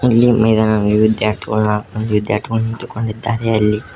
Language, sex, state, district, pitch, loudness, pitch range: Kannada, male, Karnataka, Koppal, 110 Hz, -16 LUFS, 105-115 Hz